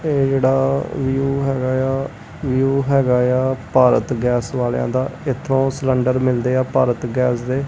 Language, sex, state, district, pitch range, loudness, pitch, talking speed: Punjabi, male, Punjab, Kapurthala, 125-135 Hz, -18 LUFS, 130 Hz, 165 wpm